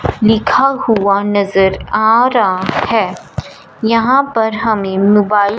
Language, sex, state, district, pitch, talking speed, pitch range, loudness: Hindi, female, Punjab, Fazilka, 220 Hz, 120 wpm, 200-230 Hz, -13 LUFS